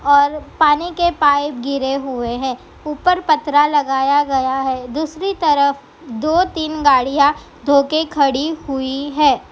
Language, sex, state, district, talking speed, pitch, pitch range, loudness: Hindi, female, Bihar, Begusarai, 130 wpm, 290 Hz, 270-310 Hz, -17 LUFS